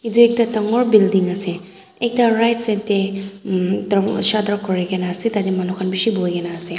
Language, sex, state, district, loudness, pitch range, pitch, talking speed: Nagamese, female, Nagaland, Dimapur, -18 LUFS, 185-225 Hz, 195 Hz, 210 wpm